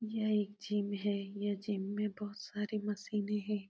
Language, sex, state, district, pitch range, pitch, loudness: Hindi, female, Uttar Pradesh, Etah, 205-210 Hz, 210 Hz, -37 LUFS